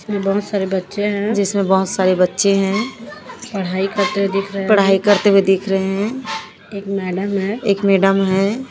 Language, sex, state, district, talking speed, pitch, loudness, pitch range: Hindi, female, Chhattisgarh, Raipur, 195 wpm, 195 Hz, -17 LUFS, 195-205 Hz